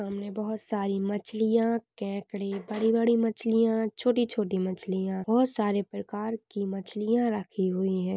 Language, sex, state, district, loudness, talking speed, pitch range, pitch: Hindi, female, Maharashtra, Dhule, -28 LUFS, 140 wpm, 195-225 Hz, 210 Hz